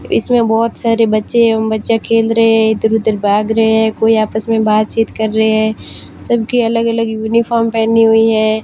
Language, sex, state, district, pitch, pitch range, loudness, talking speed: Hindi, female, Rajasthan, Barmer, 225 Hz, 220-230 Hz, -13 LUFS, 195 wpm